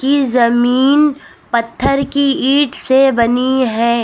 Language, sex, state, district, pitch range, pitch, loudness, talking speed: Hindi, female, Uttar Pradesh, Lucknow, 240-275 Hz, 260 Hz, -13 LUFS, 120 wpm